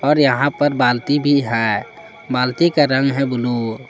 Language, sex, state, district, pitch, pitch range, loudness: Hindi, male, Jharkhand, Palamu, 135 Hz, 125-145 Hz, -17 LUFS